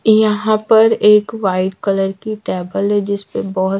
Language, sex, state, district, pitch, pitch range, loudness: Hindi, female, Madhya Pradesh, Dhar, 205 Hz, 195-215 Hz, -15 LUFS